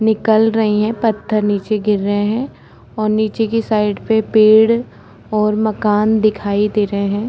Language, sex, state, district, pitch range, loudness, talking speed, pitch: Hindi, female, Uttar Pradesh, Etah, 210-220 Hz, -15 LUFS, 165 wpm, 215 Hz